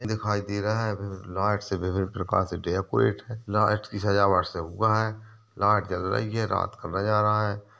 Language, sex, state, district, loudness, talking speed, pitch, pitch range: Hindi, male, Chhattisgarh, Kabirdham, -26 LUFS, 190 wpm, 105 Hz, 95-110 Hz